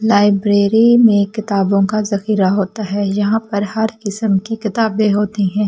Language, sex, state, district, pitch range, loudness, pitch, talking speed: Hindi, female, Delhi, New Delhi, 200-220 Hz, -15 LUFS, 205 Hz, 160 wpm